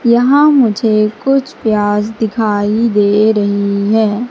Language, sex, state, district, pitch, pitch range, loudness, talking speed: Hindi, female, Madhya Pradesh, Katni, 220 Hz, 205-235 Hz, -12 LUFS, 110 wpm